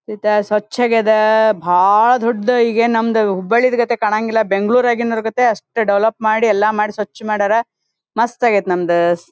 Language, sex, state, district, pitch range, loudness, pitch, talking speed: Kannada, female, Karnataka, Dharwad, 210-235 Hz, -15 LUFS, 220 Hz, 150 wpm